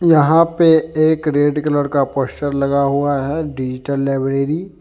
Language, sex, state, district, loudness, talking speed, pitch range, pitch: Hindi, male, Jharkhand, Deoghar, -16 LUFS, 160 wpm, 140-160 Hz, 145 Hz